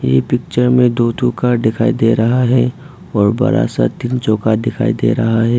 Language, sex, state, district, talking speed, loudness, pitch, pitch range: Hindi, male, Arunachal Pradesh, Papum Pare, 205 wpm, -15 LUFS, 120 Hz, 115-125 Hz